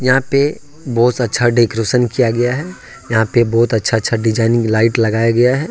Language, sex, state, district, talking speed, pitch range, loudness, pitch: Hindi, male, Jharkhand, Ranchi, 190 wpm, 115-125 Hz, -15 LUFS, 120 Hz